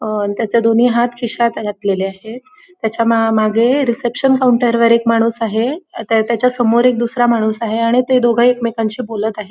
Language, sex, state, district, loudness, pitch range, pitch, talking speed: Marathi, female, Goa, North and South Goa, -15 LUFS, 225-245 Hz, 230 Hz, 185 wpm